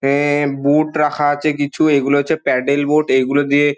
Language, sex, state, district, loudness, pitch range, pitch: Bengali, male, West Bengal, Dakshin Dinajpur, -16 LUFS, 140-150 Hz, 145 Hz